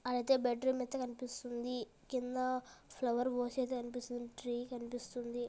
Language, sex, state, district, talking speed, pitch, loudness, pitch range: Telugu, male, Andhra Pradesh, Anantapur, 140 wpm, 245 Hz, -39 LUFS, 240-255 Hz